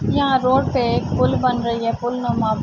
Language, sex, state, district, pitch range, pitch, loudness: Urdu, female, Andhra Pradesh, Anantapur, 230-255 Hz, 245 Hz, -19 LUFS